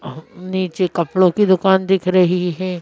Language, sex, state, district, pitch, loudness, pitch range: Hindi, female, Madhya Pradesh, Bhopal, 185 Hz, -16 LUFS, 180-190 Hz